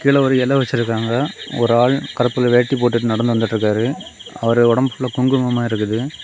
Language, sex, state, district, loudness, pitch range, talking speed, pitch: Tamil, male, Tamil Nadu, Kanyakumari, -17 LUFS, 115-130 Hz, 165 wpm, 120 Hz